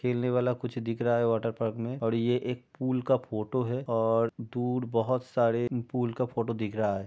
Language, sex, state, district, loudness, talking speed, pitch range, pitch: Hindi, male, Uttar Pradesh, Jyotiba Phule Nagar, -29 LUFS, 210 wpm, 115-125 Hz, 120 Hz